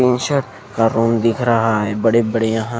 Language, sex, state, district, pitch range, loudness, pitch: Hindi, male, Maharashtra, Mumbai Suburban, 115-120 Hz, -17 LUFS, 115 Hz